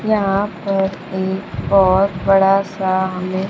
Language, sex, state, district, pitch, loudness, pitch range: Hindi, female, Bihar, Kaimur, 190 Hz, -17 LUFS, 185-195 Hz